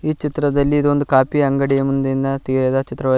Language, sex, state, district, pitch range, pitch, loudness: Kannada, male, Karnataka, Koppal, 135-145 Hz, 135 Hz, -18 LUFS